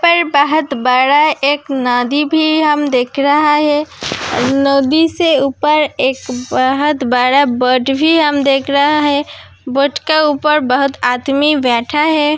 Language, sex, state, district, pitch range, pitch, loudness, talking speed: Hindi, female, Uttar Pradesh, Hamirpur, 265-300 Hz, 285 Hz, -13 LUFS, 140 wpm